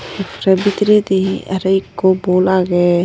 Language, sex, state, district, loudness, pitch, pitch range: Chakma, female, Tripura, Unakoti, -15 LUFS, 190 Hz, 185-195 Hz